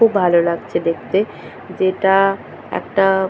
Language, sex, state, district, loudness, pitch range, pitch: Bengali, female, West Bengal, Purulia, -17 LUFS, 170-195 Hz, 190 Hz